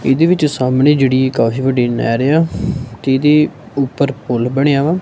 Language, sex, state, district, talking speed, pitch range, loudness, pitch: Punjabi, male, Punjab, Kapurthala, 180 wpm, 130-150 Hz, -14 LUFS, 135 Hz